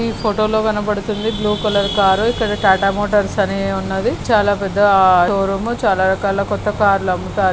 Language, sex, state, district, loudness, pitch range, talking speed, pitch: Telugu, female, Andhra Pradesh, Chittoor, -16 LUFS, 195-210 Hz, 165 wpm, 205 Hz